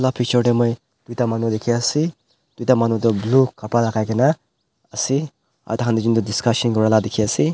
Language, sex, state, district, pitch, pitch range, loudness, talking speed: Nagamese, male, Nagaland, Dimapur, 120 Hz, 110-130 Hz, -19 LUFS, 185 wpm